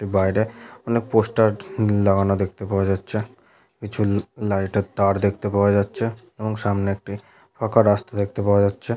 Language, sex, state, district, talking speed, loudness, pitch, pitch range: Bengali, male, West Bengal, Malda, 140 wpm, -22 LUFS, 100 Hz, 100-110 Hz